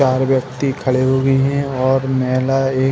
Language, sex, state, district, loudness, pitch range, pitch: Hindi, male, Bihar, Jahanabad, -17 LUFS, 130-135 Hz, 130 Hz